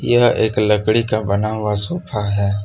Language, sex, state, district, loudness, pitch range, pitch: Hindi, male, Jharkhand, Palamu, -17 LUFS, 105-110 Hz, 105 Hz